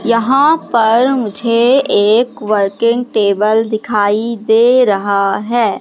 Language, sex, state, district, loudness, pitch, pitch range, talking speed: Hindi, female, Madhya Pradesh, Katni, -13 LUFS, 225 Hz, 210-240 Hz, 105 wpm